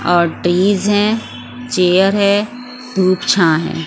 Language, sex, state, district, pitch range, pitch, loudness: Hindi, female, Bihar, West Champaran, 170-205 Hz, 185 Hz, -14 LUFS